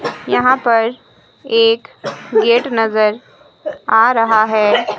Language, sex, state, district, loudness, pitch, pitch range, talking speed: Hindi, female, Himachal Pradesh, Shimla, -14 LUFS, 230 Hz, 220-255 Hz, 95 wpm